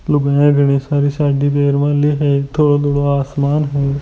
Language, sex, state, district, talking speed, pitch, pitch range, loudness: Hindi, male, Rajasthan, Nagaur, 150 wpm, 145 Hz, 140-145 Hz, -15 LUFS